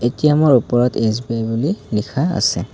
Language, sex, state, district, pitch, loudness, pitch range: Assamese, male, Assam, Kamrup Metropolitan, 120 Hz, -17 LUFS, 110-135 Hz